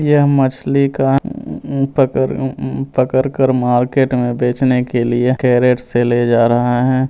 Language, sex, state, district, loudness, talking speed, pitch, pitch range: Hindi, male, Bihar, Gopalganj, -15 LUFS, 160 wpm, 130 Hz, 125-135 Hz